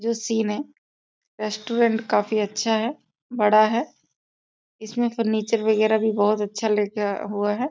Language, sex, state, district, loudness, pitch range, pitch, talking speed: Hindi, female, Bihar, East Champaran, -23 LUFS, 210-230 Hz, 220 Hz, 140 wpm